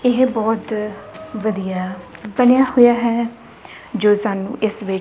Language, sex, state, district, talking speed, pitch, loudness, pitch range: Punjabi, female, Punjab, Kapurthala, 130 wpm, 220 Hz, -18 LUFS, 205-235 Hz